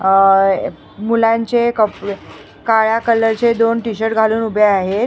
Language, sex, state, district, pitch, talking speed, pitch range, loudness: Marathi, female, Maharashtra, Mumbai Suburban, 225 Hz, 120 wpm, 205-230 Hz, -14 LUFS